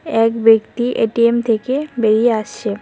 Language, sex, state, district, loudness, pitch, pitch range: Bengali, female, West Bengal, Cooch Behar, -16 LUFS, 230 Hz, 220-240 Hz